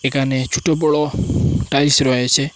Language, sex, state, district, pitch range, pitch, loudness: Bengali, male, Assam, Hailakandi, 130-150 Hz, 140 Hz, -17 LUFS